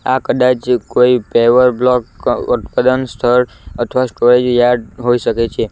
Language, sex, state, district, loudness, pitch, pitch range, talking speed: Gujarati, male, Gujarat, Valsad, -14 LUFS, 125 Hz, 115-125 Hz, 135 wpm